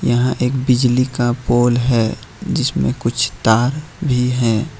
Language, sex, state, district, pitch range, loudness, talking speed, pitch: Hindi, male, Jharkhand, Ranchi, 120-130 Hz, -17 LUFS, 135 wpm, 125 Hz